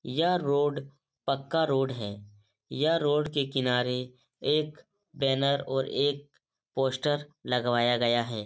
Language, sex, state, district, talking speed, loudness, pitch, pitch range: Hindi, male, Uttar Pradesh, Etah, 120 wpm, -28 LUFS, 135 Hz, 125-145 Hz